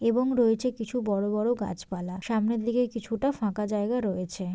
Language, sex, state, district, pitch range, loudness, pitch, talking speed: Bengali, female, West Bengal, Jalpaiguri, 200-240 Hz, -28 LUFS, 225 Hz, 170 wpm